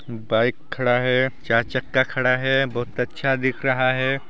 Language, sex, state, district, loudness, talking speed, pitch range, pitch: Hindi, male, Chhattisgarh, Sarguja, -21 LUFS, 165 wpm, 120-135 Hz, 130 Hz